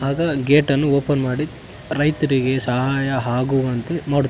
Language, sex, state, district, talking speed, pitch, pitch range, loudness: Kannada, male, Karnataka, Raichur, 125 wpm, 135 Hz, 130-145 Hz, -20 LUFS